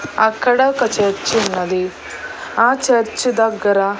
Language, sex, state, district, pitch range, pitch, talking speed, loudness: Telugu, female, Andhra Pradesh, Annamaya, 195-240 Hz, 220 Hz, 105 wpm, -16 LUFS